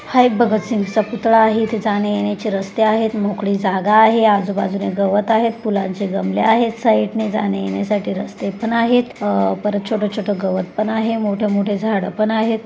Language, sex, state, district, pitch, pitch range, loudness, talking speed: Marathi, female, Maharashtra, Pune, 210 Hz, 200-220 Hz, -17 LUFS, 180 wpm